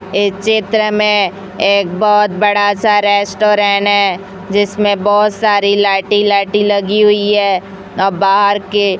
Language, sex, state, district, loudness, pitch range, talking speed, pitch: Hindi, female, Chhattisgarh, Raipur, -12 LUFS, 195-210 Hz, 145 wpm, 205 Hz